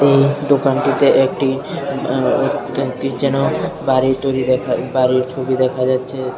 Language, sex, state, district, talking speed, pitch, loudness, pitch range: Bengali, male, Tripura, Unakoti, 120 wpm, 135 Hz, -17 LUFS, 130-140 Hz